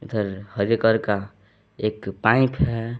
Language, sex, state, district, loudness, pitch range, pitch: Hindi, male, Jharkhand, Palamu, -23 LUFS, 100-115 Hz, 105 Hz